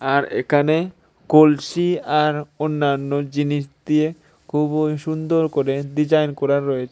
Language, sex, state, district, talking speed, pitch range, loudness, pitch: Bengali, male, Tripura, West Tripura, 115 wpm, 140-155 Hz, -20 LUFS, 150 Hz